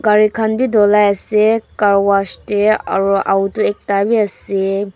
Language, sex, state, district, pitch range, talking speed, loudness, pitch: Nagamese, female, Nagaland, Dimapur, 200-215 Hz, 155 wpm, -15 LUFS, 205 Hz